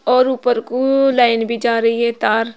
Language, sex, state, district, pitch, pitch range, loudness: Hindi, female, Uttar Pradesh, Saharanpur, 235 Hz, 230-255 Hz, -16 LUFS